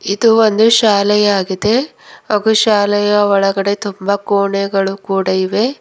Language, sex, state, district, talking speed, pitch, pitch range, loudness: Kannada, female, Karnataka, Bidar, 115 wpm, 205 Hz, 195-215 Hz, -13 LUFS